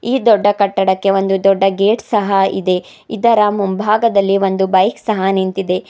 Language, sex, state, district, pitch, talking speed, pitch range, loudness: Kannada, female, Karnataka, Bidar, 195 Hz, 140 wpm, 190-210 Hz, -14 LUFS